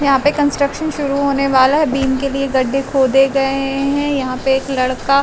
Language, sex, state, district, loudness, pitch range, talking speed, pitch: Hindi, female, Uttar Pradesh, Gorakhpur, -16 LUFS, 265-280 Hz, 220 wpm, 275 Hz